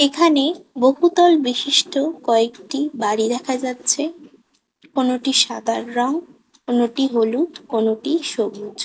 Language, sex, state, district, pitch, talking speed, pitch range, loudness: Bengali, female, West Bengal, Kolkata, 265 Hz, 95 wpm, 235-300 Hz, -19 LUFS